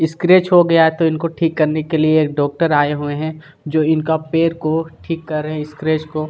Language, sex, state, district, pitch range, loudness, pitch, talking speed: Hindi, male, Chhattisgarh, Kabirdham, 155-165 Hz, -17 LUFS, 155 Hz, 240 wpm